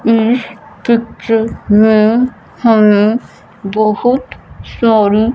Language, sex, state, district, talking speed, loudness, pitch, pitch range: Hindi, female, Punjab, Fazilka, 65 wpm, -12 LUFS, 225 Hz, 215-235 Hz